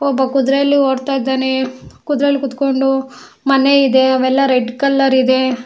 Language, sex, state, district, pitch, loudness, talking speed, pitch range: Kannada, female, Karnataka, Bangalore, 270 Hz, -14 LUFS, 125 wpm, 260-275 Hz